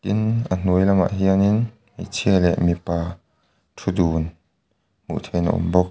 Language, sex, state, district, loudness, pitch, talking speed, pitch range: Mizo, male, Mizoram, Aizawl, -21 LUFS, 95 Hz, 150 wpm, 85-100 Hz